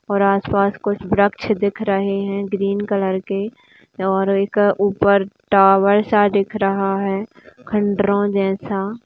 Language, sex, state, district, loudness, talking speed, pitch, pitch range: Hindi, female, Uttar Pradesh, Jalaun, -18 LUFS, 140 wpm, 200 Hz, 195-205 Hz